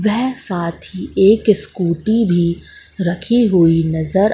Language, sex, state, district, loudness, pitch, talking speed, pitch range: Hindi, female, Madhya Pradesh, Katni, -16 LUFS, 190 Hz, 125 wpm, 170-215 Hz